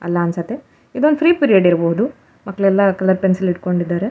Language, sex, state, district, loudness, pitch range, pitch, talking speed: Kannada, female, Karnataka, Shimoga, -16 LUFS, 175-230 Hz, 190 Hz, 160 wpm